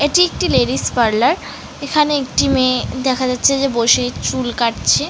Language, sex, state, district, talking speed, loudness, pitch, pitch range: Bengali, female, West Bengal, North 24 Parganas, 150 wpm, -16 LUFS, 255 Hz, 245-280 Hz